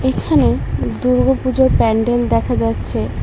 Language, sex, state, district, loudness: Bengali, female, West Bengal, Cooch Behar, -16 LUFS